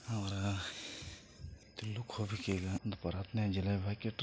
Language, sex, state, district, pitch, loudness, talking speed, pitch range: Kannada, male, Karnataka, Bijapur, 100 Hz, -39 LUFS, 100 wpm, 95-110 Hz